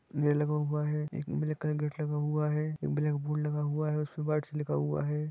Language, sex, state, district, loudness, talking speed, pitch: Hindi, male, Jharkhand, Sahebganj, -32 LUFS, 180 wpm, 150 Hz